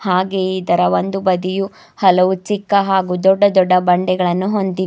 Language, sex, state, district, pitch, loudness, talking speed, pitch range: Kannada, female, Karnataka, Bidar, 185 Hz, -15 LUFS, 135 wpm, 185-195 Hz